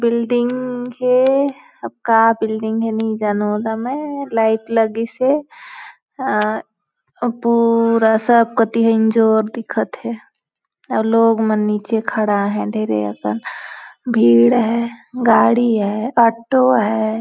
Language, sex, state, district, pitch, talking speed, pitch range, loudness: Hindi, female, Chhattisgarh, Balrampur, 225 Hz, 105 wpm, 220-240 Hz, -17 LUFS